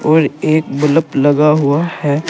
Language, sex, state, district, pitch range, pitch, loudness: Hindi, male, Uttar Pradesh, Saharanpur, 145-160 Hz, 150 Hz, -13 LUFS